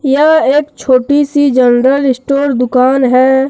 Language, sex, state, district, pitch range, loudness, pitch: Hindi, male, Jharkhand, Deoghar, 255-285 Hz, -10 LUFS, 270 Hz